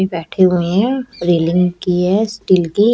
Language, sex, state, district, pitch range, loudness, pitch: Hindi, female, Chhattisgarh, Raipur, 175-205 Hz, -15 LUFS, 180 Hz